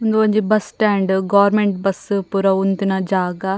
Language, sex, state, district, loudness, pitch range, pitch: Tulu, female, Karnataka, Dakshina Kannada, -17 LUFS, 190-210 Hz, 195 Hz